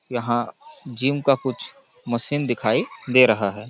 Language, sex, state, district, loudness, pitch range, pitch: Hindi, male, Chhattisgarh, Balrampur, -21 LUFS, 120-140 Hz, 125 Hz